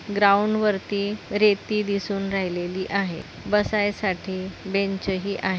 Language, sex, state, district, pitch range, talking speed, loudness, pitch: Marathi, female, Maharashtra, Nagpur, 190-205 Hz, 105 wpm, -24 LUFS, 200 Hz